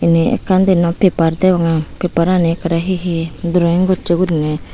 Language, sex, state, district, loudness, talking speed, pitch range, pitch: Chakma, female, Tripura, Unakoti, -15 LUFS, 175 wpm, 165-185 Hz, 170 Hz